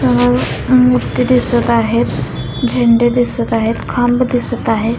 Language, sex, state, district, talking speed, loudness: Marathi, female, Maharashtra, Dhule, 120 wpm, -14 LUFS